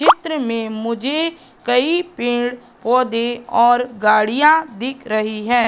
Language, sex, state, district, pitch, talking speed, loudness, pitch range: Hindi, female, Madhya Pradesh, Katni, 245 Hz, 105 wpm, -18 LUFS, 230-270 Hz